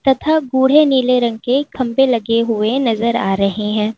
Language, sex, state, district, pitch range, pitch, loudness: Hindi, female, Uttar Pradesh, Lalitpur, 220-265 Hz, 240 Hz, -15 LUFS